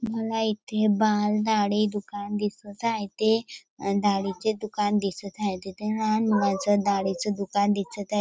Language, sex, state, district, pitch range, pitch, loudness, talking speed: Marathi, female, Maharashtra, Dhule, 200-215 Hz, 210 Hz, -26 LUFS, 140 wpm